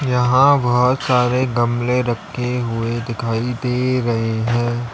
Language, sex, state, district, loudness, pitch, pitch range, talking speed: Hindi, male, Uttar Pradesh, Lalitpur, -18 LUFS, 125 Hz, 120-125 Hz, 120 wpm